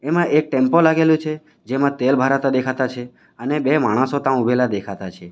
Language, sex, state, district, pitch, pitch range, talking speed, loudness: Gujarati, male, Gujarat, Valsad, 135 Hz, 125-150 Hz, 190 wpm, -18 LUFS